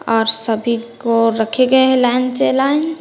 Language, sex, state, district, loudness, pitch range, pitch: Hindi, female, Bihar, West Champaran, -15 LUFS, 225-260 Hz, 235 Hz